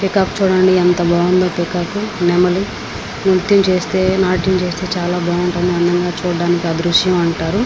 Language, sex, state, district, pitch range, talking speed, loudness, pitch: Telugu, female, Andhra Pradesh, Srikakulam, 175-185 Hz, 70 wpm, -15 LUFS, 180 Hz